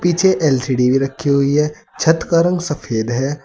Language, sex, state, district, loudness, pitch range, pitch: Hindi, male, Uttar Pradesh, Saharanpur, -16 LUFS, 135-165 Hz, 145 Hz